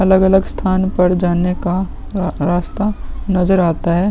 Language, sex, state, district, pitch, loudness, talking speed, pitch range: Hindi, male, Uttar Pradesh, Muzaffarnagar, 185 Hz, -16 LUFS, 145 wpm, 180-190 Hz